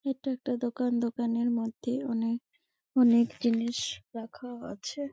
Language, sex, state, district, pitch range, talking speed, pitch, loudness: Bengali, female, West Bengal, Malda, 235-265 Hz, 130 wpm, 245 Hz, -30 LUFS